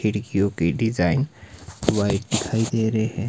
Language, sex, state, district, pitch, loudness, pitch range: Hindi, male, Himachal Pradesh, Shimla, 110 Hz, -23 LUFS, 100-115 Hz